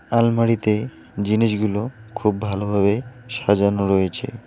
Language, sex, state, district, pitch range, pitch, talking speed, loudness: Bengali, male, West Bengal, Alipurduar, 100-115 Hz, 105 Hz, 80 wpm, -21 LUFS